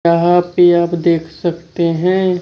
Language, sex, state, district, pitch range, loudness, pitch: Hindi, male, Bihar, Kaimur, 170-175 Hz, -14 LUFS, 170 Hz